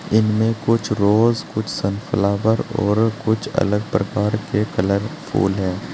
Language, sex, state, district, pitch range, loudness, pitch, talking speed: Hindi, male, Uttar Pradesh, Saharanpur, 100-110 Hz, -20 LUFS, 105 Hz, 130 wpm